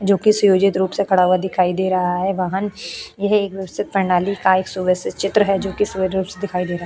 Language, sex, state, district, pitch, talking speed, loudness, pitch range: Hindi, female, Uttarakhand, Tehri Garhwal, 190 Hz, 235 wpm, -18 LUFS, 185-200 Hz